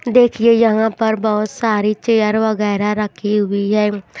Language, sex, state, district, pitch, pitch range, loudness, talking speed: Hindi, female, Maharashtra, Washim, 215 Hz, 210-225 Hz, -16 LUFS, 145 wpm